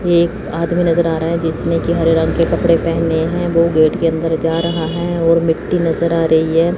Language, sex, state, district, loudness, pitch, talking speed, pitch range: Hindi, female, Chandigarh, Chandigarh, -15 LUFS, 165 Hz, 240 wpm, 165-170 Hz